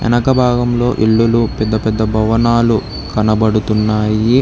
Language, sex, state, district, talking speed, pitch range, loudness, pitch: Telugu, male, Telangana, Hyderabad, 95 wpm, 110-120 Hz, -14 LUFS, 110 Hz